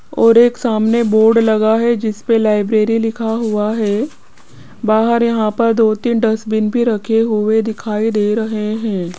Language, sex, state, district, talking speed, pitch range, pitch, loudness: Hindi, female, Rajasthan, Jaipur, 165 wpm, 215-230 Hz, 220 Hz, -15 LUFS